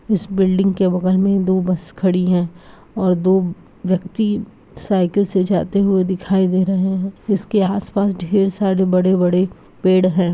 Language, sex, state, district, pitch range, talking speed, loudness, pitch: Hindi, female, Bihar, Gopalganj, 185-195 Hz, 155 wpm, -17 LUFS, 190 Hz